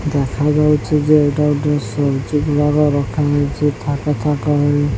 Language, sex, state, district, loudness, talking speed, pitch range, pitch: Odia, male, Odisha, Sambalpur, -16 LUFS, 120 wpm, 145-150 Hz, 145 Hz